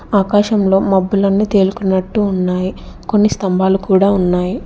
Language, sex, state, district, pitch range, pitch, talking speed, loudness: Telugu, female, Telangana, Hyderabad, 190-205 Hz, 195 Hz, 105 wpm, -14 LUFS